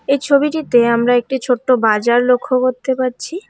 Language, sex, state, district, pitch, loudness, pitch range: Bengali, female, West Bengal, Cooch Behar, 255 Hz, -15 LUFS, 240-275 Hz